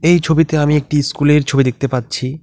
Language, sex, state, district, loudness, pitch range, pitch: Bengali, male, West Bengal, Alipurduar, -15 LUFS, 135-155 Hz, 145 Hz